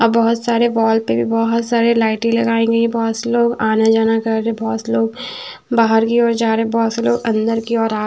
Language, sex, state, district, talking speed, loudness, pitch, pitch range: Hindi, female, Bihar, West Champaran, 260 wpm, -16 LUFS, 230 Hz, 225-230 Hz